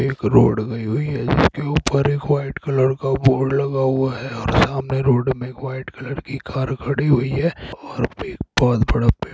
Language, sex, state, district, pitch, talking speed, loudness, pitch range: Hindi, male, Bihar, Saran, 135 Hz, 205 wpm, -20 LUFS, 130-140 Hz